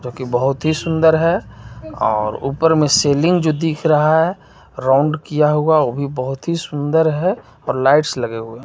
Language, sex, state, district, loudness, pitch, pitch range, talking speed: Hindi, male, Jharkhand, Ranchi, -17 LUFS, 150 Hz, 130-160 Hz, 185 wpm